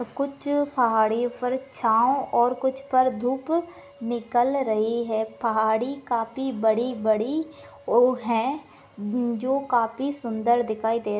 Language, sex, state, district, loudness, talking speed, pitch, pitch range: Hindi, female, Maharashtra, Sindhudurg, -24 LUFS, 120 wpm, 240 Hz, 225-265 Hz